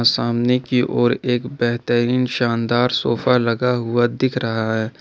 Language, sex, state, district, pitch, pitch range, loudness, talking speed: Hindi, male, Jharkhand, Ranchi, 120 Hz, 120-125 Hz, -19 LUFS, 145 wpm